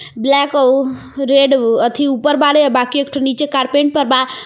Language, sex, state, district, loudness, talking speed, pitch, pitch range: Bhojpuri, female, Jharkhand, Palamu, -14 LUFS, 175 wpm, 275 Hz, 260-285 Hz